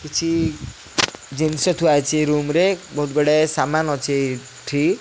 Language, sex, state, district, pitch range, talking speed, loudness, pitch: Odia, male, Odisha, Khordha, 145-160 Hz, 145 wpm, -20 LUFS, 150 Hz